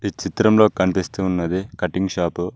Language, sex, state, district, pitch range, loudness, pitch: Telugu, male, Telangana, Mahabubabad, 90-100 Hz, -20 LUFS, 95 Hz